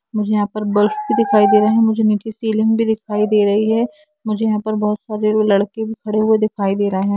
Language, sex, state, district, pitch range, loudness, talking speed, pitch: Hindi, female, Jharkhand, Sahebganj, 210-220 Hz, -17 LUFS, 250 wpm, 215 Hz